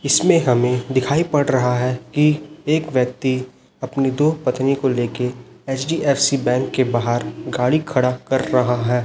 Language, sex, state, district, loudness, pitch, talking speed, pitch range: Hindi, male, Chhattisgarh, Raipur, -19 LUFS, 130 Hz, 150 wpm, 125-145 Hz